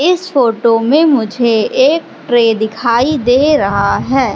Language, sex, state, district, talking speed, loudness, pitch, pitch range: Hindi, female, Madhya Pradesh, Katni, 140 wpm, -12 LUFS, 250 Hz, 230-295 Hz